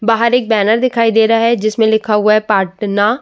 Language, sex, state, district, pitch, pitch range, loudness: Hindi, female, Uttar Pradesh, Muzaffarnagar, 220 Hz, 210-230 Hz, -13 LUFS